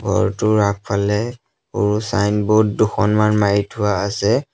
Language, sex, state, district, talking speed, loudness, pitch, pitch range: Assamese, male, Assam, Sonitpur, 105 wpm, -18 LUFS, 105 Hz, 100-110 Hz